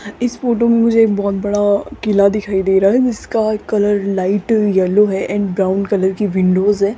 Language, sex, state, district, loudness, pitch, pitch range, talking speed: Hindi, female, Rajasthan, Jaipur, -15 LUFS, 205 Hz, 195-220 Hz, 200 wpm